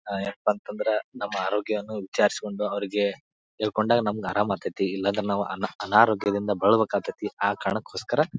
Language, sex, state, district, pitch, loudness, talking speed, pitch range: Kannada, male, Karnataka, Bijapur, 105 Hz, -26 LUFS, 130 wpm, 100-105 Hz